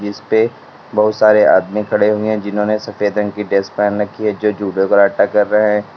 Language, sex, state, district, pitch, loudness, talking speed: Hindi, male, Uttar Pradesh, Lalitpur, 105 Hz, -15 LUFS, 220 wpm